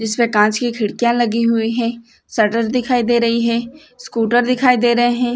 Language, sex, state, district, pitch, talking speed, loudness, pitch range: Hindi, female, Chhattisgarh, Bilaspur, 235 Hz, 190 wpm, -16 LUFS, 230-245 Hz